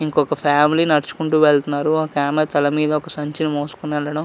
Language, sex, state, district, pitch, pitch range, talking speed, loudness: Telugu, male, Andhra Pradesh, Visakhapatnam, 150 Hz, 145-155 Hz, 185 wpm, -18 LUFS